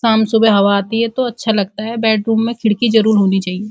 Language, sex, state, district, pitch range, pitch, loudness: Hindi, female, Uttar Pradesh, Muzaffarnagar, 205-225 Hz, 220 Hz, -14 LUFS